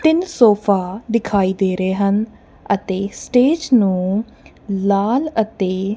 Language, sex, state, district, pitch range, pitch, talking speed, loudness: Punjabi, female, Punjab, Kapurthala, 190-230 Hz, 200 Hz, 110 wpm, -17 LUFS